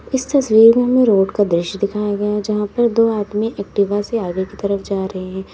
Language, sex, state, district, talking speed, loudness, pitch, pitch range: Hindi, female, Uttar Pradesh, Lalitpur, 215 wpm, -17 LUFS, 205 Hz, 200-225 Hz